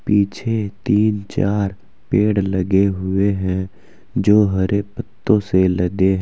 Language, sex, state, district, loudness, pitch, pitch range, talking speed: Hindi, male, Uttar Pradesh, Saharanpur, -18 LUFS, 100 Hz, 95-105 Hz, 125 wpm